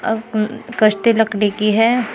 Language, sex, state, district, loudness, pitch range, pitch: Hindi, female, Uttar Pradesh, Shamli, -16 LUFS, 215-230 Hz, 220 Hz